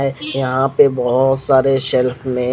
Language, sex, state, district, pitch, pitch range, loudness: Hindi, male, Odisha, Khordha, 135 Hz, 125-135 Hz, -16 LUFS